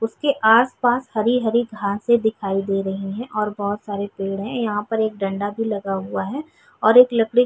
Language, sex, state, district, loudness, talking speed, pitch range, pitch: Hindi, female, Uttar Pradesh, Jyotiba Phule Nagar, -20 LUFS, 200 wpm, 200-235 Hz, 220 Hz